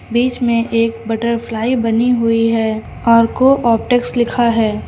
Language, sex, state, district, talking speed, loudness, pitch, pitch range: Hindi, female, Uttar Pradesh, Lucknow, 145 wpm, -15 LUFS, 230 Hz, 230-240 Hz